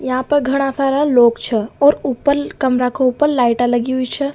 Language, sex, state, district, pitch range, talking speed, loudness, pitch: Rajasthani, female, Rajasthan, Nagaur, 245-280 Hz, 205 wpm, -16 LUFS, 260 Hz